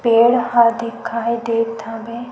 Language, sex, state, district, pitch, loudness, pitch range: Chhattisgarhi, female, Chhattisgarh, Sukma, 230 Hz, -18 LUFS, 230-235 Hz